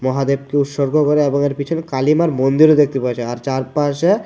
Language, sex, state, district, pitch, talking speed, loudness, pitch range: Bengali, male, Tripura, West Tripura, 140 Hz, 170 wpm, -16 LUFS, 135-150 Hz